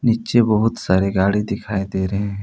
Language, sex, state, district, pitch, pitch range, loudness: Hindi, male, Jharkhand, Palamu, 100 Hz, 95-110 Hz, -19 LUFS